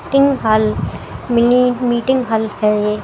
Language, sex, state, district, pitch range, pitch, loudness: Hindi, female, Haryana, Jhajjar, 215-250 Hz, 235 Hz, -15 LUFS